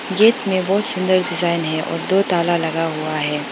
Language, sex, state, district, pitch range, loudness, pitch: Hindi, female, Arunachal Pradesh, Lower Dibang Valley, 155-190 Hz, -18 LUFS, 175 Hz